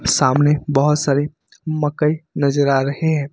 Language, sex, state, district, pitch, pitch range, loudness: Hindi, male, Uttar Pradesh, Lucknow, 145 Hz, 140-150 Hz, -18 LUFS